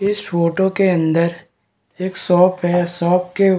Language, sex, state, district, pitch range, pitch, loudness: Hindi, male, Bihar, Kishanganj, 170-190 Hz, 180 Hz, -17 LUFS